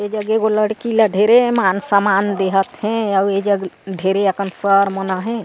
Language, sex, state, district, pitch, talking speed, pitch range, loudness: Chhattisgarhi, female, Chhattisgarh, Sarguja, 200 Hz, 200 wpm, 195-215 Hz, -16 LUFS